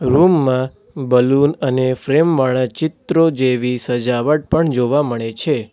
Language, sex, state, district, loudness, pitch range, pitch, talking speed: Gujarati, male, Gujarat, Valsad, -16 LUFS, 125-150 Hz, 130 Hz, 135 wpm